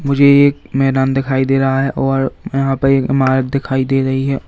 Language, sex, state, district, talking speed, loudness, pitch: Hindi, male, Uttar Pradesh, Lalitpur, 225 wpm, -14 LUFS, 135 Hz